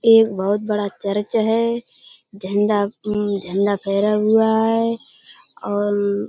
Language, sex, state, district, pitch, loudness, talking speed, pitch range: Hindi, female, Uttar Pradesh, Budaun, 210 Hz, -19 LUFS, 125 wpm, 200-225 Hz